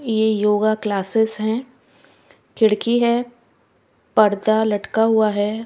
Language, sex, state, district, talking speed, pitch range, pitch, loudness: Hindi, female, Himachal Pradesh, Shimla, 105 wpm, 210-230 Hz, 220 Hz, -19 LUFS